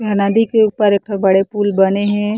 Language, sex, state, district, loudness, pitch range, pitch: Chhattisgarhi, female, Chhattisgarh, Korba, -14 LUFS, 200-215 Hz, 205 Hz